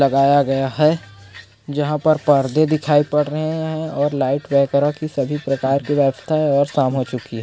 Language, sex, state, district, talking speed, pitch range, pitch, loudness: Hindi, male, Chhattisgarh, Korba, 195 wpm, 135-150 Hz, 145 Hz, -18 LUFS